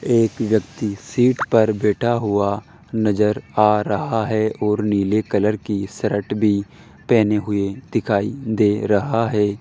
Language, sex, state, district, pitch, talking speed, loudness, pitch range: Hindi, male, Rajasthan, Jaipur, 105 Hz, 135 wpm, -20 LUFS, 105-115 Hz